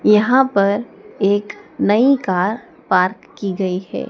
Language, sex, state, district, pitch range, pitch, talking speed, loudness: Hindi, female, Madhya Pradesh, Dhar, 195-230 Hz, 205 Hz, 130 wpm, -17 LUFS